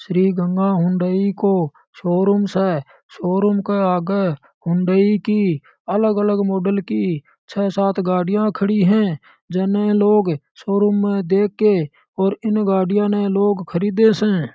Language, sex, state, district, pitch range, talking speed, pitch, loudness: Marwari, male, Rajasthan, Churu, 185-205 Hz, 135 wpm, 195 Hz, -18 LUFS